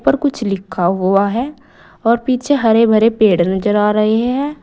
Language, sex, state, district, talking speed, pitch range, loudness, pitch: Hindi, female, Uttar Pradesh, Saharanpur, 170 wpm, 200-250 Hz, -15 LUFS, 220 Hz